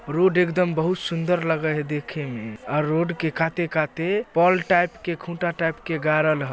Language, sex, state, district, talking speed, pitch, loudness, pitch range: Magahi, male, Bihar, Samastipur, 175 wpm, 165 Hz, -23 LUFS, 155-175 Hz